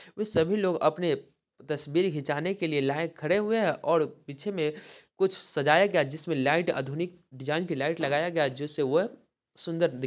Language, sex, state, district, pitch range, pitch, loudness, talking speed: Hindi, male, Bihar, Sitamarhi, 150-180 Hz, 165 Hz, -28 LUFS, 185 wpm